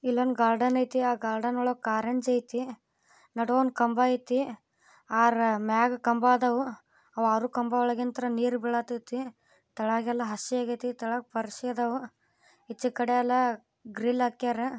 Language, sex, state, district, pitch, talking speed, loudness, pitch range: Kannada, female, Karnataka, Bijapur, 245 Hz, 135 wpm, -28 LUFS, 230-250 Hz